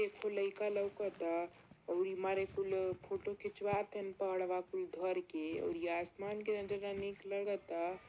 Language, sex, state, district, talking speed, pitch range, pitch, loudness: Bhojpuri, female, Uttar Pradesh, Varanasi, 155 wpm, 180-200 Hz, 195 Hz, -40 LUFS